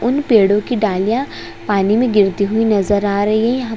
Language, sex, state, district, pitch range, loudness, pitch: Hindi, female, Chhattisgarh, Raigarh, 205-235 Hz, -15 LUFS, 215 Hz